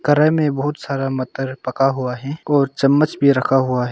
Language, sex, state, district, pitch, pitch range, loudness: Hindi, male, Arunachal Pradesh, Longding, 135 Hz, 130-145 Hz, -18 LUFS